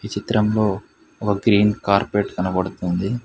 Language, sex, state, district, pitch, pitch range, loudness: Telugu, male, Telangana, Hyderabad, 105 Hz, 95-105 Hz, -20 LUFS